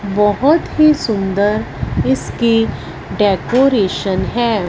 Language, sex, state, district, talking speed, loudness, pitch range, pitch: Hindi, female, Punjab, Fazilka, 75 wpm, -15 LUFS, 140-230 Hz, 200 Hz